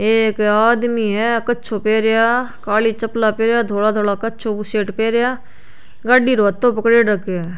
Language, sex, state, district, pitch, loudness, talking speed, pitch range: Rajasthani, female, Rajasthan, Churu, 225 Hz, -16 LUFS, 150 wpm, 210-235 Hz